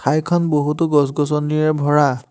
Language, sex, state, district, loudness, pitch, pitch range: Assamese, male, Assam, Hailakandi, -17 LUFS, 150 Hz, 145-155 Hz